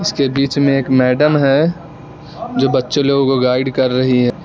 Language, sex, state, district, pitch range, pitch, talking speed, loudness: Hindi, male, Arunachal Pradesh, Lower Dibang Valley, 130-150 Hz, 135 Hz, 190 wpm, -14 LUFS